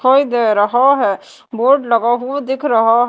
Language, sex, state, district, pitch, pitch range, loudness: Hindi, female, Madhya Pradesh, Dhar, 245 Hz, 230-270 Hz, -14 LUFS